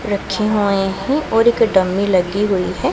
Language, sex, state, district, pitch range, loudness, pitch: Hindi, female, Punjab, Pathankot, 190-220 Hz, -16 LUFS, 200 Hz